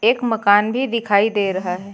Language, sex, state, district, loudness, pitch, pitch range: Hindi, female, Uttar Pradesh, Lucknow, -18 LUFS, 205 Hz, 200-230 Hz